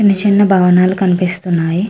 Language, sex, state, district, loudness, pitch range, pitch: Telugu, female, Andhra Pradesh, Srikakulam, -12 LUFS, 180-200 Hz, 185 Hz